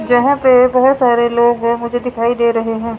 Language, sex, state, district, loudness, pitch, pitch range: Hindi, female, Chandigarh, Chandigarh, -13 LUFS, 240 Hz, 235-250 Hz